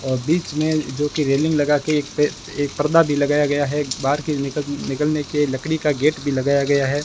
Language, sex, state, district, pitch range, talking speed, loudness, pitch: Hindi, male, Rajasthan, Bikaner, 140-150 Hz, 205 wpm, -20 LUFS, 145 Hz